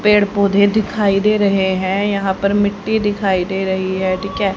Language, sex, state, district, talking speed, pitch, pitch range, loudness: Hindi, male, Haryana, Charkhi Dadri, 195 wpm, 200 Hz, 190-205 Hz, -16 LUFS